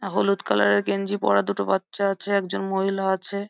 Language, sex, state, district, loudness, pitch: Bengali, female, West Bengal, Jhargram, -23 LUFS, 190 Hz